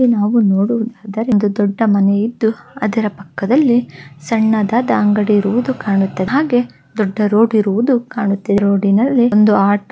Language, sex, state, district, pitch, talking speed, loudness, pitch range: Kannada, female, Karnataka, Bellary, 215 Hz, 140 wpm, -15 LUFS, 200-235 Hz